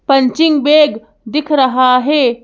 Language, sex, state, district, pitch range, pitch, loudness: Hindi, female, Madhya Pradesh, Bhopal, 250-300 Hz, 275 Hz, -12 LUFS